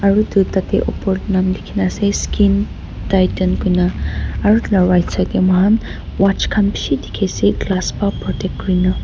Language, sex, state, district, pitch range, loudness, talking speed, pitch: Nagamese, female, Nagaland, Dimapur, 185-200 Hz, -17 LUFS, 165 wpm, 190 Hz